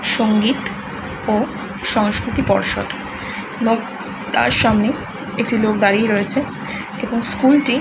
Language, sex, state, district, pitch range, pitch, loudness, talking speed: Bengali, female, West Bengal, Kolkata, 215-250 Hz, 230 Hz, -18 LUFS, 105 wpm